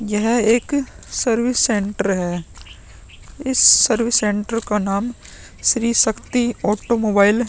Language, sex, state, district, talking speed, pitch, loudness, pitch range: Hindi, male, Bihar, Vaishali, 110 wpm, 220 Hz, -17 LUFS, 200-235 Hz